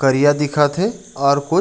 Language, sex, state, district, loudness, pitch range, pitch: Chhattisgarhi, male, Chhattisgarh, Raigarh, -17 LUFS, 140-175 Hz, 145 Hz